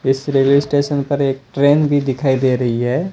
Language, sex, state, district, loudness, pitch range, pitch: Hindi, male, Rajasthan, Bikaner, -16 LUFS, 135-145 Hz, 140 Hz